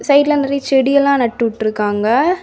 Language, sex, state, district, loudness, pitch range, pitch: Tamil, female, Tamil Nadu, Kanyakumari, -15 LUFS, 225-280 Hz, 270 Hz